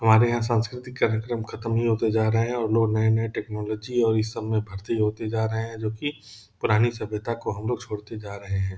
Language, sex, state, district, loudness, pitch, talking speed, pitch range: Hindi, male, Bihar, Purnia, -25 LUFS, 110 Hz, 240 wpm, 110-115 Hz